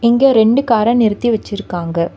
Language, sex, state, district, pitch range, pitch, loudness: Tamil, female, Tamil Nadu, Nilgiris, 205-235 Hz, 225 Hz, -14 LUFS